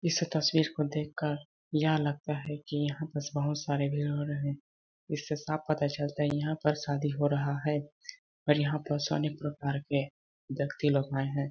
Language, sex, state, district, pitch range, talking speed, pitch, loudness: Hindi, male, Chhattisgarh, Balrampur, 145-150 Hz, 205 wpm, 145 Hz, -32 LUFS